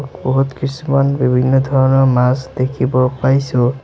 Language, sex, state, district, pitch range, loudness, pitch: Assamese, male, Assam, Sonitpur, 130-135 Hz, -15 LUFS, 135 Hz